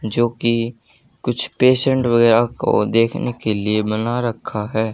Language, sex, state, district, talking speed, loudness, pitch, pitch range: Hindi, male, Haryana, Jhajjar, 145 wpm, -18 LUFS, 115 Hz, 110-120 Hz